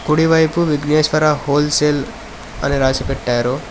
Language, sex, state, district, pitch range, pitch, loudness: Telugu, male, Telangana, Hyderabad, 140-155 Hz, 150 Hz, -16 LUFS